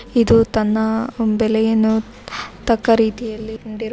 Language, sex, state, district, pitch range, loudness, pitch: Kannada, female, Karnataka, Mysore, 220-230 Hz, -17 LUFS, 225 Hz